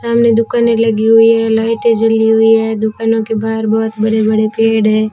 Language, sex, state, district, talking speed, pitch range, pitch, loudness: Hindi, female, Rajasthan, Jaisalmer, 200 wpm, 220-225 Hz, 225 Hz, -12 LUFS